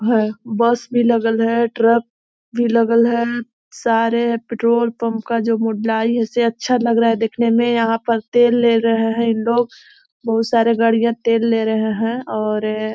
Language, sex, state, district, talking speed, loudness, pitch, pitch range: Hindi, female, Chhattisgarh, Korba, 180 wpm, -17 LUFS, 230 Hz, 225-235 Hz